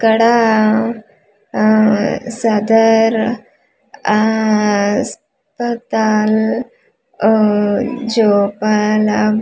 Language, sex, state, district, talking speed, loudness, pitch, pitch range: Telugu, female, Andhra Pradesh, Manyam, 50 wpm, -14 LUFS, 220 Hz, 215-230 Hz